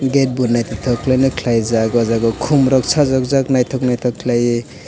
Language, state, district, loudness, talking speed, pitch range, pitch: Kokborok, Tripura, West Tripura, -16 LUFS, 195 wpm, 120-130 Hz, 125 Hz